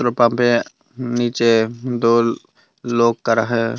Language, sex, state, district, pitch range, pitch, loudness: Hindi, male, Tripura, Dhalai, 115-120 Hz, 120 Hz, -18 LUFS